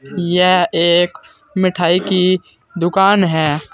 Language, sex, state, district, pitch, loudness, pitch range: Hindi, male, Uttar Pradesh, Saharanpur, 180 Hz, -14 LUFS, 170-185 Hz